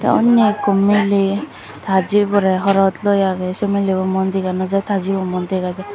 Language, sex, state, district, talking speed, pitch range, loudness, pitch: Chakma, female, Tripura, Dhalai, 190 wpm, 190-205 Hz, -17 LUFS, 195 Hz